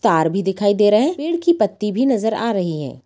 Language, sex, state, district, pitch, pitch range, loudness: Hindi, female, Bihar, Saran, 210 Hz, 195-250 Hz, -18 LUFS